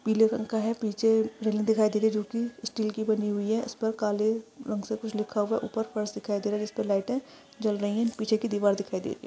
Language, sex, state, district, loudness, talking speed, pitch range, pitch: Hindi, female, Maharashtra, Pune, -28 LUFS, 290 wpm, 210-225 Hz, 220 Hz